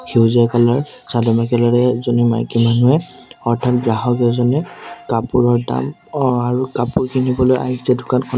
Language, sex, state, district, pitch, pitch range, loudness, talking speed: Assamese, male, Assam, Sonitpur, 125 Hz, 120-130 Hz, -16 LUFS, 130 wpm